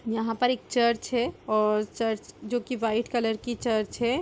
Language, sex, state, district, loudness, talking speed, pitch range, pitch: Hindi, female, Uttar Pradesh, Budaun, -27 LUFS, 200 wpm, 220-240 Hz, 230 Hz